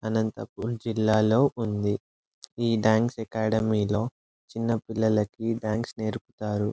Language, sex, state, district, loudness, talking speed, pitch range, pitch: Telugu, male, Andhra Pradesh, Anantapur, -27 LUFS, 100 wpm, 110-115 Hz, 110 Hz